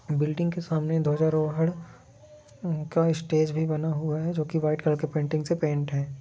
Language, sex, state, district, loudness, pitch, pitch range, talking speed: Hindi, male, Jharkhand, Jamtara, -27 LUFS, 155 Hz, 150-160 Hz, 200 wpm